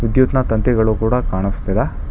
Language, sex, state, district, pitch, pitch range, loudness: Kannada, male, Karnataka, Bangalore, 110 Hz, 100-125 Hz, -17 LUFS